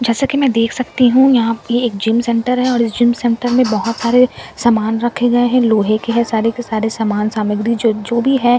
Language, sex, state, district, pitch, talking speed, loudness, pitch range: Hindi, female, Bihar, Katihar, 235 Hz, 225 wpm, -15 LUFS, 225-245 Hz